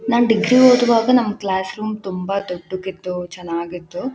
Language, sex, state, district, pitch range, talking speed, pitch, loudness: Kannada, female, Karnataka, Shimoga, 180-235 Hz, 145 wpm, 195 Hz, -18 LUFS